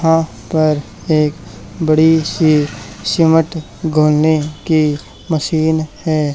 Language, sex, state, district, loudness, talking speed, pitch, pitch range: Hindi, male, Haryana, Charkhi Dadri, -15 LUFS, 95 wpm, 155 Hz, 150-160 Hz